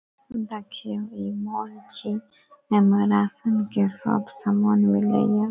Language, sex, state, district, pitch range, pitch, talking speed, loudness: Maithili, female, Bihar, Saharsa, 200-220 Hz, 210 Hz, 120 wpm, -24 LUFS